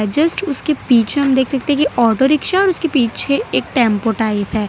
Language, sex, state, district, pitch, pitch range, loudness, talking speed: Hindi, female, Gujarat, Valsad, 265 Hz, 225-295 Hz, -16 LUFS, 215 wpm